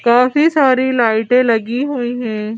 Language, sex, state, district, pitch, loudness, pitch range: Hindi, female, Madhya Pradesh, Bhopal, 245 Hz, -14 LUFS, 230-260 Hz